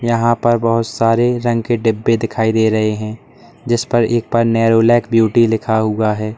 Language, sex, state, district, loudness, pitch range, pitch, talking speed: Hindi, male, Uttar Pradesh, Lalitpur, -15 LUFS, 110-120 Hz, 115 Hz, 190 wpm